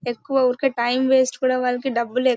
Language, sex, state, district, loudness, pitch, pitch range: Telugu, female, Karnataka, Bellary, -20 LUFS, 255 Hz, 245-260 Hz